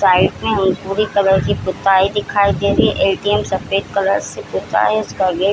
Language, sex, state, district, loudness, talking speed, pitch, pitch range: Hindi, female, Bihar, Jamui, -16 LUFS, 195 wpm, 195 Hz, 190-205 Hz